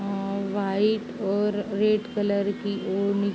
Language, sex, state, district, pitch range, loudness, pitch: Hindi, female, Uttar Pradesh, Jalaun, 200-210 Hz, -26 LUFS, 200 Hz